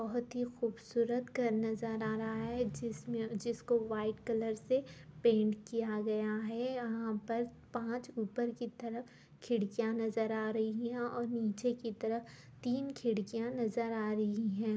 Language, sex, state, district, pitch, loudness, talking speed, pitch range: Hindi, female, Bihar, Gopalganj, 230 Hz, -37 LUFS, 155 wpm, 220-240 Hz